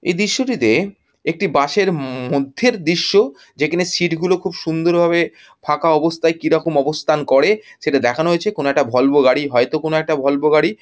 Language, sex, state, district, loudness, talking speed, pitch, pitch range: Bengali, male, West Bengal, Jhargram, -17 LUFS, 165 wpm, 160 Hz, 145-175 Hz